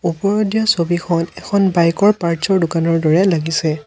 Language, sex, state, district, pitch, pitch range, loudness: Assamese, male, Assam, Sonitpur, 170 Hz, 165-195 Hz, -16 LUFS